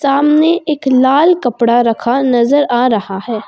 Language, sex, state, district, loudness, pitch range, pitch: Hindi, female, Jharkhand, Garhwa, -12 LUFS, 235-290 Hz, 255 Hz